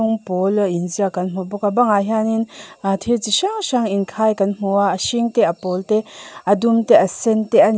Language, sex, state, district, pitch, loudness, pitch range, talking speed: Mizo, female, Mizoram, Aizawl, 210 Hz, -18 LUFS, 195-225 Hz, 230 wpm